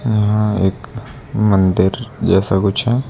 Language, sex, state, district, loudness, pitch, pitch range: Hindi, male, Uttar Pradesh, Lucknow, -16 LUFS, 105 Hz, 95-120 Hz